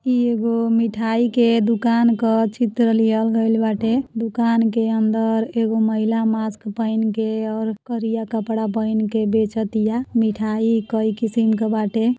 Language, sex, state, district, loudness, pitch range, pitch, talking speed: Bhojpuri, female, Uttar Pradesh, Deoria, -20 LUFS, 220-230 Hz, 225 Hz, 145 wpm